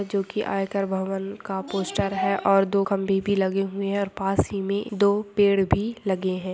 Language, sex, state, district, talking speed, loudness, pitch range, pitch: Hindi, female, Jharkhand, Jamtara, 210 wpm, -24 LUFS, 195-200 Hz, 195 Hz